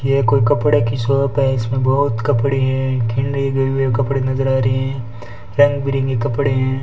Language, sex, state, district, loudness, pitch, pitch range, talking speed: Hindi, male, Rajasthan, Bikaner, -17 LUFS, 130 Hz, 120-135 Hz, 165 wpm